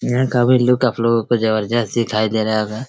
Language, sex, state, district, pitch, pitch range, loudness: Hindi, male, Chhattisgarh, Raigarh, 115 Hz, 110-125 Hz, -17 LUFS